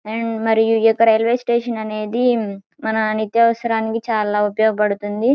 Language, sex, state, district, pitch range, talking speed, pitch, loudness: Telugu, female, Andhra Pradesh, Guntur, 215-230 Hz, 125 wpm, 225 Hz, -18 LUFS